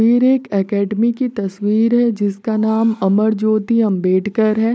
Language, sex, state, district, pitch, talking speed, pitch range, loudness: Hindi, female, Uttar Pradesh, Varanasi, 220 Hz, 150 wpm, 205-230 Hz, -16 LUFS